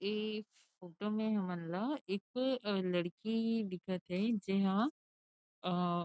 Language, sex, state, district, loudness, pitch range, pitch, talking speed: Chhattisgarhi, female, Chhattisgarh, Rajnandgaon, -37 LUFS, 180-220 Hz, 200 Hz, 130 wpm